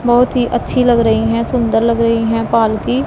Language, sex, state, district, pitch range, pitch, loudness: Hindi, female, Punjab, Pathankot, 225-245 Hz, 230 Hz, -14 LUFS